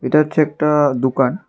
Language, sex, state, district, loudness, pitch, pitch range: Bengali, male, Tripura, West Tripura, -16 LUFS, 150 Hz, 135-150 Hz